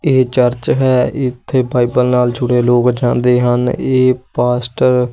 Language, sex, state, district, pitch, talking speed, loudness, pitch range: Punjabi, male, Punjab, Kapurthala, 125 Hz, 140 wpm, -14 LUFS, 125-130 Hz